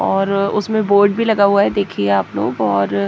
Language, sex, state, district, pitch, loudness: Hindi, female, Haryana, Jhajjar, 200 Hz, -16 LUFS